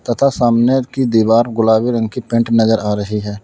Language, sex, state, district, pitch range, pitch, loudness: Hindi, male, Uttar Pradesh, Lalitpur, 110-120 Hz, 115 Hz, -15 LUFS